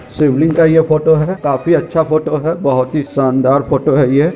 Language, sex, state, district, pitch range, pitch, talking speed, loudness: Hindi, male, Bihar, Muzaffarpur, 140-160 Hz, 155 Hz, 190 wpm, -13 LUFS